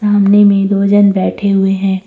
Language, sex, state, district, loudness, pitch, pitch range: Hindi, female, Uttar Pradesh, Jyotiba Phule Nagar, -11 LUFS, 200 Hz, 195-205 Hz